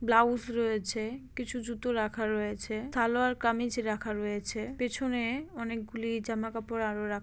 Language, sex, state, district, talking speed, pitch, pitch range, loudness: Bengali, female, West Bengal, Malda, 125 wpm, 230 Hz, 215-240 Hz, -32 LUFS